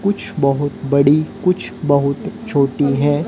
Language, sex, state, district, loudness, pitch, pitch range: Hindi, female, Haryana, Jhajjar, -17 LUFS, 145 Hz, 140-180 Hz